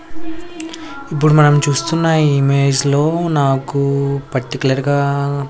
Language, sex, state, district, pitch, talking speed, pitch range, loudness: Telugu, male, Andhra Pradesh, Sri Satya Sai, 145 Hz, 85 wpm, 140-165 Hz, -15 LUFS